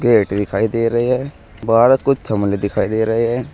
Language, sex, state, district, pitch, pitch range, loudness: Hindi, male, Uttar Pradesh, Saharanpur, 115 Hz, 105-120 Hz, -17 LUFS